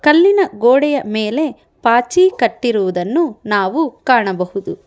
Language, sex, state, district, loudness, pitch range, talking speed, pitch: Kannada, female, Karnataka, Bangalore, -15 LUFS, 215-315 Hz, 85 wpm, 250 Hz